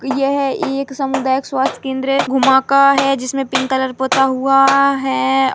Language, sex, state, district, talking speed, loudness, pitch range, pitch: Hindi, female, Chhattisgarh, Rajnandgaon, 150 wpm, -15 LUFS, 265-275 Hz, 270 Hz